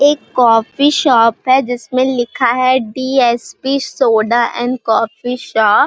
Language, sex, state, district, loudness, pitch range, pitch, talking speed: Hindi, female, Chhattisgarh, Balrampur, -14 LUFS, 235-265 Hz, 250 Hz, 135 wpm